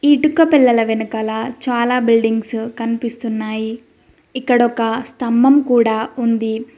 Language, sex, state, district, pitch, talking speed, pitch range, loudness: Telugu, female, Telangana, Mahabubabad, 235 Hz, 105 wpm, 225-250 Hz, -16 LUFS